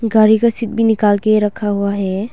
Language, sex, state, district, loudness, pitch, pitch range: Hindi, female, Arunachal Pradesh, Longding, -15 LUFS, 215 Hz, 205-225 Hz